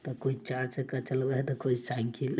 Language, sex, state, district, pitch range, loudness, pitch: Maithili, male, Bihar, Samastipur, 130-135 Hz, -32 LUFS, 130 Hz